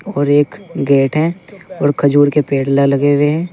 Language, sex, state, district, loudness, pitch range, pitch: Hindi, male, Uttar Pradesh, Saharanpur, -14 LUFS, 140-165 Hz, 145 Hz